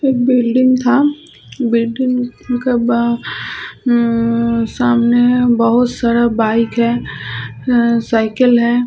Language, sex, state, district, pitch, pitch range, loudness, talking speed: Hindi, female, Chhattisgarh, Sukma, 235 Hz, 230-250 Hz, -14 LUFS, 110 wpm